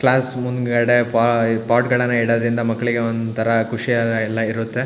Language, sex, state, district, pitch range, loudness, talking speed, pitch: Kannada, male, Karnataka, Shimoga, 115-120 Hz, -18 LUFS, 135 wpm, 115 Hz